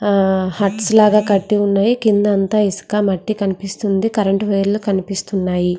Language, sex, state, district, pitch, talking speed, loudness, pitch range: Telugu, female, Andhra Pradesh, Srikakulam, 200 Hz, 125 wpm, -16 LUFS, 195-210 Hz